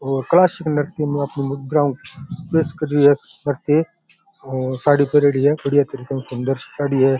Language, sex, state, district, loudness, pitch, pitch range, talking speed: Rajasthani, male, Rajasthan, Churu, -19 LUFS, 145 Hz, 135-150 Hz, 115 wpm